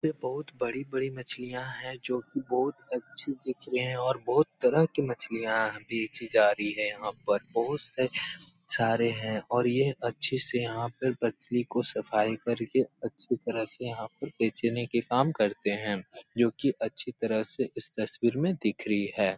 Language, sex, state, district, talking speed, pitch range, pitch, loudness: Hindi, male, Bihar, Supaul, 190 wpm, 110-130 Hz, 120 Hz, -30 LUFS